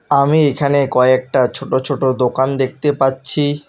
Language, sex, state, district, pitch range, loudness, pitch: Bengali, male, West Bengal, Alipurduar, 130-145 Hz, -15 LUFS, 135 Hz